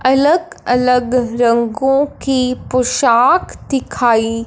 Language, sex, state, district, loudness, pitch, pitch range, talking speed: Hindi, female, Punjab, Fazilka, -15 LUFS, 250 Hz, 235-270 Hz, 80 wpm